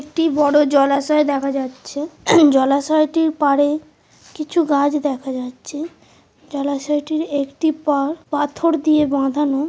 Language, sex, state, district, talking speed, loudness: Bengali, male, West Bengal, Purulia, 100 wpm, -18 LUFS